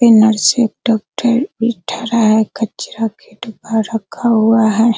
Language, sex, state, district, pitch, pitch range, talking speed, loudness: Hindi, female, Bihar, Araria, 225 Hz, 220-235 Hz, 170 wpm, -15 LUFS